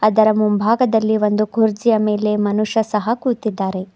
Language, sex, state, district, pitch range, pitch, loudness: Kannada, female, Karnataka, Bidar, 210-220 Hz, 215 Hz, -17 LUFS